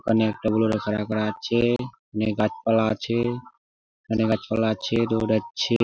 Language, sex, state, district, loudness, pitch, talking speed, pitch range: Bengali, male, West Bengal, Jhargram, -24 LUFS, 110 Hz, 115 wpm, 110-115 Hz